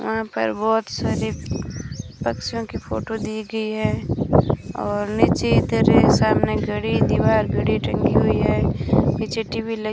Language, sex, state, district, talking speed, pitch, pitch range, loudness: Hindi, female, Rajasthan, Bikaner, 150 wpm, 215 Hz, 160-225 Hz, -21 LUFS